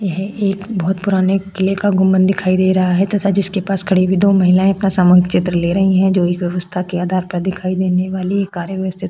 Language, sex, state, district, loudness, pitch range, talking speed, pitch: Hindi, female, Uttarakhand, Tehri Garhwal, -15 LUFS, 180-195 Hz, 250 wpm, 185 Hz